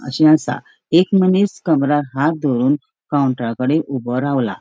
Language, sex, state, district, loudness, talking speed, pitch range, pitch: Konkani, female, Goa, North and South Goa, -17 LUFS, 145 wpm, 130-160 Hz, 145 Hz